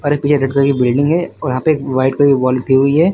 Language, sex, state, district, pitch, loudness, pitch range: Hindi, male, Uttar Pradesh, Lucknow, 140 Hz, -14 LUFS, 130-145 Hz